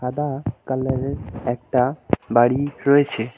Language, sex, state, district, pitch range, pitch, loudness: Bengali, male, West Bengal, Alipurduar, 120-140 Hz, 130 Hz, -21 LUFS